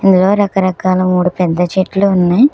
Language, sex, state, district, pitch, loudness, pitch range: Telugu, female, Telangana, Hyderabad, 185 Hz, -13 LUFS, 180-195 Hz